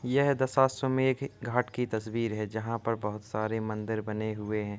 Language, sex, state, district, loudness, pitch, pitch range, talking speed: Hindi, male, Uttar Pradesh, Varanasi, -30 LUFS, 110 Hz, 110-130 Hz, 190 wpm